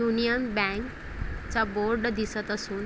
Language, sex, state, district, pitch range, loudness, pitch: Marathi, female, Maharashtra, Chandrapur, 210-235 Hz, -29 LUFS, 220 Hz